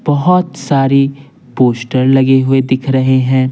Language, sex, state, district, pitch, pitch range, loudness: Hindi, male, Bihar, Patna, 135 Hz, 130-140 Hz, -12 LUFS